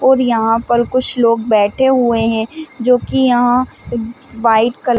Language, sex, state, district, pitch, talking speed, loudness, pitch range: Hindi, female, Chhattisgarh, Bilaspur, 240 Hz, 170 wpm, -14 LUFS, 230-255 Hz